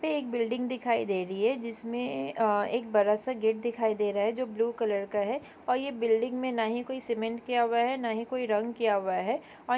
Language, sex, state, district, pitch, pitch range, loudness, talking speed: Hindi, female, Chhattisgarh, Kabirdham, 230 Hz, 215-250 Hz, -30 LUFS, 245 wpm